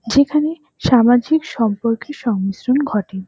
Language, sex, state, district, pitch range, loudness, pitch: Bengali, female, West Bengal, North 24 Parganas, 225-290 Hz, -17 LUFS, 245 Hz